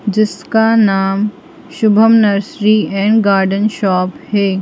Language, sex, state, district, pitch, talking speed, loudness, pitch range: Hindi, female, Madhya Pradesh, Bhopal, 205 Hz, 105 wpm, -13 LUFS, 195-215 Hz